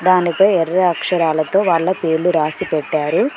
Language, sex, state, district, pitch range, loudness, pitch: Telugu, female, Telangana, Mahabubabad, 155-185 Hz, -16 LUFS, 170 Hz